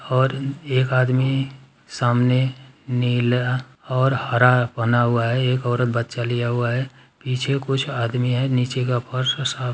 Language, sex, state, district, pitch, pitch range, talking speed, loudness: Hindi, male, Uttar Pradesh, Ghazipur, 125 Hz, 120-130 Hz, 155 wpm, -21 LUFS